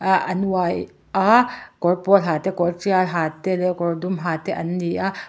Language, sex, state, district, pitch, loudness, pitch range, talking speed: Mizo, male, Mizoram, Aizawl, 185 Hz, -21 LUFS, 175-190 Hz, 225 wpm